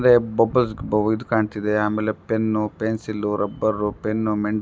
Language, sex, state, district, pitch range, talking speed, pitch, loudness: Kannada, male, Karnataka, Raichur, 105-110 Hz, 145 wpm, 110 Hz, -22 LUFS